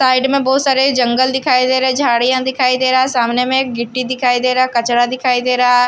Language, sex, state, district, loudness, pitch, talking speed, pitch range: Hindi, female, Bihar, Patna, -14 LUFS, 255 Hz, 255 wpm, 245-260 Hz